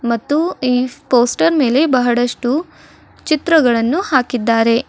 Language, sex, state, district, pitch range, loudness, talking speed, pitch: Kannada, female, Karnataka, Bidar, 240-305 Hz, -15 LUFS, 85 wpm, 255 Hz